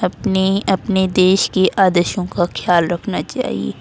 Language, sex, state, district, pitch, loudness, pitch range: Hindi, female, Delhi, New Delhi, 185 Hz, -16 LUFS, 175-190 Hz